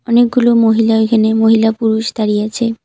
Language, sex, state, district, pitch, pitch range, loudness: Bengali, female, West Bengal, Cooch Behar, 225 Hz, 220-230 Hz, -12 LUFS